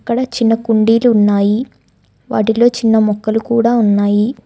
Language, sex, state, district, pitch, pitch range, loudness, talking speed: Telugu, female, Telangana, Hyderabad, 225 Hz, 215-235 Hz, -13 LUFS, 120 wpm